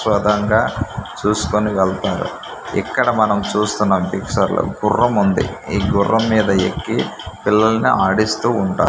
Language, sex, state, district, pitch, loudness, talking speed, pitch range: Telugu, male, Andhra Pradesh, Manyam, 105 Hz, -17 LUFS, 115 wpm, 95-110 Hz